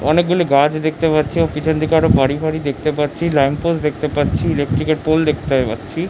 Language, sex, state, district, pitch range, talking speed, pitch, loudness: Bengali, male, West Bengal, Jhargram, 145-160 Hz, 195 wpm, 155 Hz, -17 LUFS